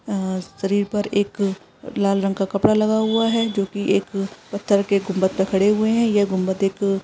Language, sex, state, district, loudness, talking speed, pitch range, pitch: Hindi, female, Uttar Pradesh, Etah, -20 LUFS, 205 wpm, 195-205 Hz, 200 Hz